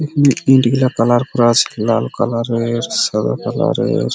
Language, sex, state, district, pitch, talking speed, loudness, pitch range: Bengali, male, West Bengal, Purulia, 120 Hz, 160 wpm, -15 LUFS, 115-130 Hz